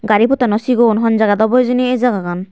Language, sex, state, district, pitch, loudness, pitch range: Chakma, female, Tripura, Dhalai, 230 Hz, -14 LUFS, 210-250 Hz